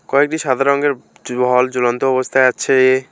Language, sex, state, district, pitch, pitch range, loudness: Bengali, male, West Bengal, Alipurduar, 130 Hz, 125-135 Hz, -15 LUFS